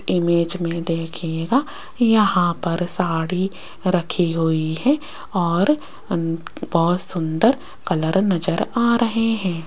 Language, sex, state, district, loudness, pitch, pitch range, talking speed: Hindi, female, Rajasthan, Jaipur, -21 LUFS, 180 Hz, 165-225 Hz, 105 wpm